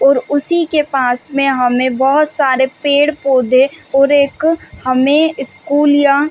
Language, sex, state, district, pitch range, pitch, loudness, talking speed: Hindi, female, Chhattisgarh, Bastar, 265-295 Hz, 280 Hz, -13 LUFS, 150 wpm